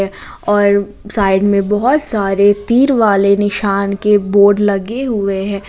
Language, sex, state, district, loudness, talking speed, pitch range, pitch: Hindi, female, Jharkhand, Palamu, -13 LUFS, 135 wpm, 200-210 Hz, 205 Hz